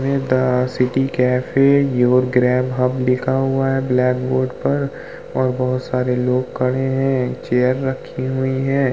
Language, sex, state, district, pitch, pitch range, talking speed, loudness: Hindi, male, Uttar Pradesh, Muzaffarnagar, 130 Hz, 125-135 Hz, 150 wpm, -18 LUFS